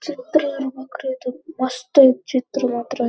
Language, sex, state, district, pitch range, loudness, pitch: Kannada, female, Karnataka, Belgaum, 255-280 Hz, -20 LUFS, 265 Hz